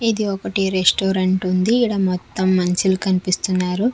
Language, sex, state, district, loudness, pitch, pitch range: Telugu, female, Andhra Pradesh, Sri Satya Sai, -18 LUFS, 190 Hz, 185-200 Hz